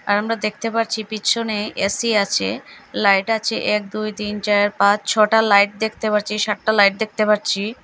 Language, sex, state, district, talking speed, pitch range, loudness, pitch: Bengali, female, Assam, Hailakandi, 170 wpm, 205-220 Hz, -19 LUFS, 210 Hz